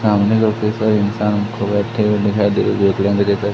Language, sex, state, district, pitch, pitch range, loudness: Hindi, male, Madhya Pradesh, Katni, 105 Hz, 100-105 Hz, -16 LUFS